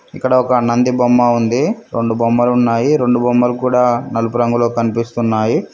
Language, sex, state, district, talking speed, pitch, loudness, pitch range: Telugu, male, Telangana, Mahabubabad, 145 wpm, 120 Hz, -14 LUFS, 115-125 Hz